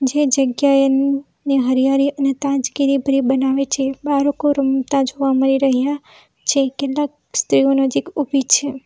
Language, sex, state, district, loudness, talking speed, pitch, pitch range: Gujarati, female, Gujarat, Valsad, -17 LUFS, 130 wpm, 275 Hz, 265-280 Hz